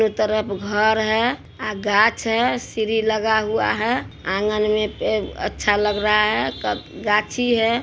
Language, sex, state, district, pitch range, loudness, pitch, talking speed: Hindi, female, Bihar, Supaul, 210-220 Hz, -20 LUFS, 215 Hz, 155 wpm